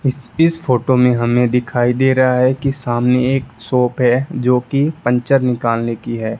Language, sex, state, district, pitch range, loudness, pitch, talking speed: Hindi, male, Rajasthan, Bikaner, 120-135 Hz, -16 LUFS, 125 Hz, 180 wpm